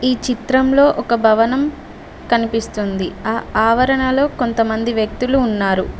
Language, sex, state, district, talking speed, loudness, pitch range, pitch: Telugu, female, Telangana, Mahabubabad, 110 wpm, -16 LUFS, 220-260 Hz, 235 Hz